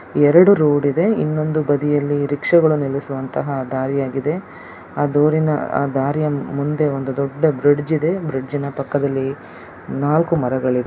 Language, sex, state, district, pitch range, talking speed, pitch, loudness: Kannada, male, Karnataka, Dakshina Kannada, 140-155 Hz, 110 wpm, 145 Hz, -18 LUFS